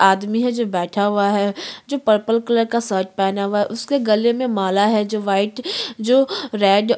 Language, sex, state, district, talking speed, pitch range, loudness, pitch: Hindi, female, Chhattisgarh, Korba, 205 wpm, 200-235 Hz, -19 LUFS, 210 Hz